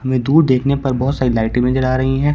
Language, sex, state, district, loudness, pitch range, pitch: Hindi, male, Uttar Pradesh, Shamli, -16 LUFS, 125-140 Hz, 130 Hz